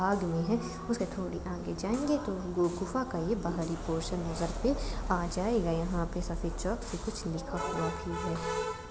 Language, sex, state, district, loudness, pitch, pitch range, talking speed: Hindi, female, Jharkhand, Jamtara, -33 LUFS, 180 Hz, 170-225 Hz, 180 wpm